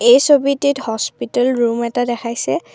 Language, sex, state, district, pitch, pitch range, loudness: Assamese, female, Assam, Kamrup Metropolitan, 245 Hz, 235-280 Hz, -16 LUFS